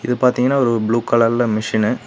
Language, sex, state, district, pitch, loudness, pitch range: Tamil, male, Tamil Nadu, Nilgiris, 120 Hz, -17 LUFS, 115-125 Hz